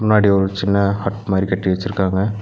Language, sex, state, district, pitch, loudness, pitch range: Tamil, male, Tamil Nadu, Nilgiris, 95 Hz, -18 LUFS, 95-100 Hz